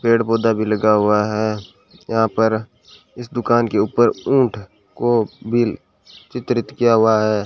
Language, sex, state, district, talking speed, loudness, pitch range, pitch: Hindi, male, Rajasthan, Bikaner, 155 wpm, -18 LUFS, 105-120 Hz, 110 Hz